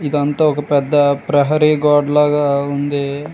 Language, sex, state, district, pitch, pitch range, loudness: Telugu, male, Andhra Pradesh, Srikakulam, 145 Hz, 145-150 Hz, -15 LUFS